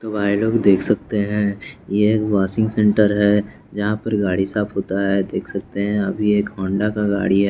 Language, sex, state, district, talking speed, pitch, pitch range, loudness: Hindi, male, Bihar, West Champaran, 200 wpm, 105 Hz, 100-105 Hz, -19 LUFS